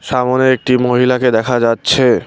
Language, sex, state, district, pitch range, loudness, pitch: Bengali, male, West Bengal, Cooch Behar, 120-125 Hz, -13 LUFS, 125 Hz